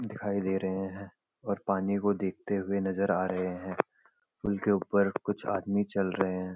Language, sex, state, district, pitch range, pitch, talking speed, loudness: Hindi, male, Uttarakhand, Uttarkashi, 95-100 Hz, 100 Hz, 190 wpm, -31 LUFS